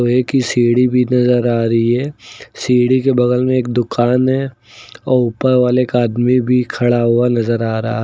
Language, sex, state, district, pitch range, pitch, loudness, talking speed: Hindi, male, Uttar Pradesh, Lucknow, 120-125 Hz, 125 Hz, -14 LUFS, 200 wpm